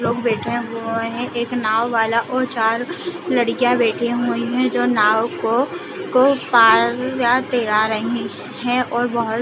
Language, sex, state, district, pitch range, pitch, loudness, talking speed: Hindi, female, Chhattisgarh, Balrampur, 225-245 Hz, 235 Hz, -18 LUFS, 155 wpm